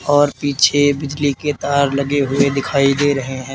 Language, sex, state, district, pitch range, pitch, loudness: Hindi, male, Uttar Pradesh, Lalitpur, 140-145 Hz, 140 Hz, -16 LUFS